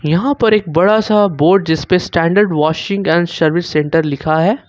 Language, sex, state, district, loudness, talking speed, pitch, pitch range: Hindi, male, Jharkhand, Ranchi, -14 LUFS, 190 wpm, 170 Hz, 160-205 Hz